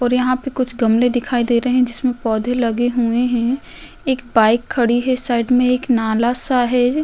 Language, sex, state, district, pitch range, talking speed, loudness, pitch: Hindi, female, Uttar Pradesh, Hamirpur, 235-250 Hz, 215 wpm, -17 LUFS, 245 Hz